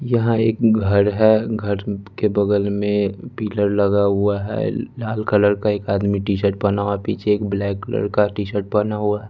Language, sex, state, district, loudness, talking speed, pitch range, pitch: Hindi, male, Bihar, West Champaran, -19 LUFS, 200 wpm, 100-110 Hz, 105 Hz